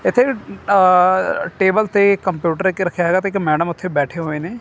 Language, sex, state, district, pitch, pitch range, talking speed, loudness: Punjabi, male, Punjab, Kapurthala, 185 Hz, 170-200 Hz, 195 wpm, -17 LUFS